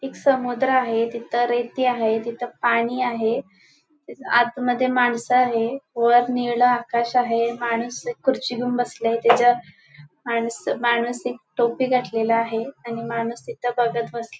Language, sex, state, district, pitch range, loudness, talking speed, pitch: Marathi, female, Goa, North and South Goa, 230-245 Hz, -22 LUFS, 145 wpm, 240 Hz